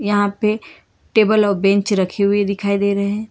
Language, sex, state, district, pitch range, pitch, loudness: Hindi, female, Karnataka, Bangalore, 200-210 Hz, 200 Hz, -17 LUFS